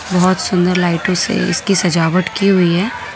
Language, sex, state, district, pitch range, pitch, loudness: Hindi, female, Delhi, New Delhi, 175-195 Hz, 185 Hz, -14 LUFS